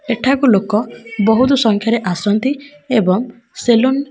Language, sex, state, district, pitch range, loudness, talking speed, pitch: Odia, female, Odisha, Khordha, 215-265 Hz, -15 LUFS, 115 wpm, 235 Hz